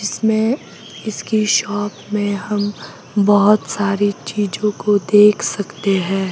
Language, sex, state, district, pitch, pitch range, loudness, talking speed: Hindi, female, Himachal Pradesh, Shimla, 205 Hz, 200-210 Hz, -17 LUFS, 115 wpm